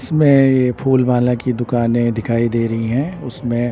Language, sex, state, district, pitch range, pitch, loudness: Hindi, male, Bihar, Patna, 120-130 Hz, 120 Hz, -16 LUFS